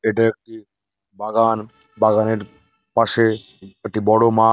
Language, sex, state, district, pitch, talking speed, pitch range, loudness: Bengali, male, West Bengal, North 24 Parganas, 110 Hz, 105 wpm, 105-115 Hz, -18 LUFS